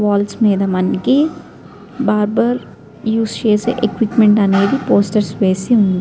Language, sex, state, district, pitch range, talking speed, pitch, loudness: Telugu, female, Andhra Pradesh, Visakhapatnam, 200-230 Hz, 110 wpm, 210 Hz, -15 LUFS